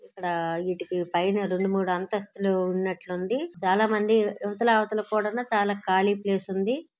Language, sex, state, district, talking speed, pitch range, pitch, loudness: Telugu, female, Andhra Pradesh, Srikakulam, 135 wpm, 185-215 Hz, 195 Hz, -26 LUFS